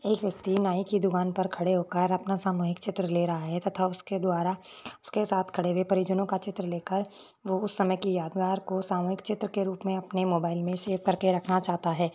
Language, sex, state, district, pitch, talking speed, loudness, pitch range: Hindi, female, Rajasthan, Churu, 185 Hz, 205 wpm, -29 LUFS, 180-195 Hz